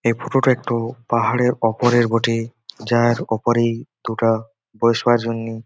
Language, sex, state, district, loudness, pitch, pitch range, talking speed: Bengali, male, West Bengal, Jalpaiguri, -19 LUFS, 115 Hz, 115-120 Hz, 125 wpm